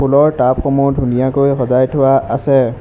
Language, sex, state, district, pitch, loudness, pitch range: Assamese, male, Assam, Hailakandi, 135 Hz, -13 LUFS, 130-140 Hz